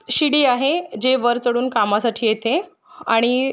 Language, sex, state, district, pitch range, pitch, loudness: Marathi, female, Maharashtra, Solapur, 230-265 Hz, 250 Hz, -18 LUFS